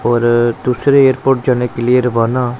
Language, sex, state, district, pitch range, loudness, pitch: Hindi, male, Punjab, Pathankot, 120-130 Hz, -13 LUFS, 125 Hz